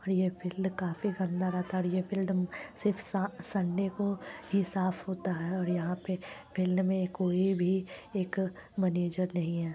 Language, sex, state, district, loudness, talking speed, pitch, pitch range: Hindi, female, Bihar, Lakhisarai, -32 LUFS, 180 wpm, 185 Hz, 180-190 Hz